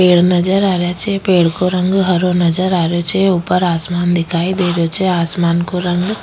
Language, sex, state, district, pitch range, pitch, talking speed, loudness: Rajasthani, female, Rajasthan, Nagaur, 175-185 Hz, 180 Hz, 220 wpm, -15 LUFS